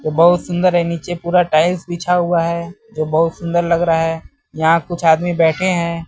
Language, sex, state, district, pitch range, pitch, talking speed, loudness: Hindi, male, Bihar, West Champaran, 165-175 Hz, 170 Hz, 195 wpm, -16 LUFS